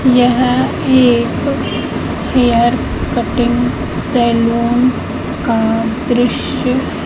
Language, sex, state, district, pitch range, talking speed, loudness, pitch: Hindi, female, Madhya Pradesh, Katni, 235-250 Hz, 60 wpm, -14 LUFS, 245 Hz